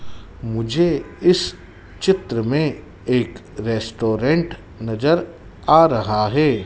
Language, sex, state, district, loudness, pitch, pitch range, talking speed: Hindi, male, Madhya Pradesh, Dhar, -19 LUFS, 115 Hz, 105-155 Hz, 90 wpm